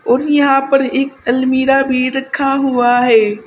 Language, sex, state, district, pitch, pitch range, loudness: Hindi, female, Uttar Pradesh, Saharanpur, 270 Hz, 245-275 Hz, -13 LUFS